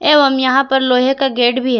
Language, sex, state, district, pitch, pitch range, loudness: Hindi, female, Jharkhand, Palamu, 265 Hz, 255-270 Hz, -13 LUFS